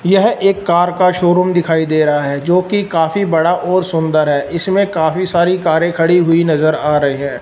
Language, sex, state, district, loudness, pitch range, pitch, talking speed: Hindi, male, Punjab, Fazilka, -13 LUFS, 160-180 Hz, 170 Hz, 210 wpm